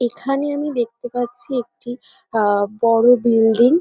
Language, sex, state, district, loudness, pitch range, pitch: Bengali, female, West Bengal, North 24 Parganas, -18 LUFS, 230-255 Hz, 240 Hz